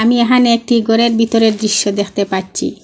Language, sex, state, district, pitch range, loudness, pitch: Bengali, female, Assam, Hailakandi, 205-235 Hz, -13 LUFS, 225 Hz